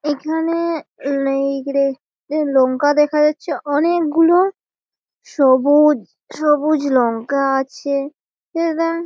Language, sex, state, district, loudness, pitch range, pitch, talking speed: Bengali, female, West Bengal, Malda, -17 LUFS, 275-320 Hz, 295 Hz, 75 wpm